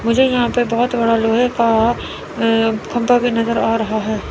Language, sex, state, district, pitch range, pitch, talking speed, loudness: Hindi, female, Chandigarh, Chandigarh, 225-245 Hz, 230 Hz, 195 wpm, -16 LUFS